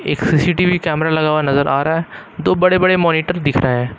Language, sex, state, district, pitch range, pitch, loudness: Hindi, male, Uttar Pradesh, Lucknow, 145-175 Hz, 160 Hz, -15 LUFS